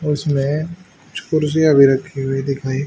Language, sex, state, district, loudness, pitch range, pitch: Hindi, male, Haryana, Charkhi Dadri, -17 LUFS, 135-155 Hz, 140 Hz